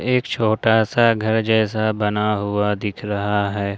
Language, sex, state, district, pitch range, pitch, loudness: Hindi, male, Jharkhand, Ranchi, 105-110 Hz, 105 Hz, -19 LUFS